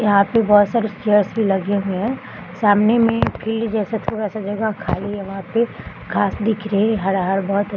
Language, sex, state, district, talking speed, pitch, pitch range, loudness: Hindi, female, Bihar, Bhagalpur, 200 wpm, 205 Hz, 200-220 Hz, -19 LUFS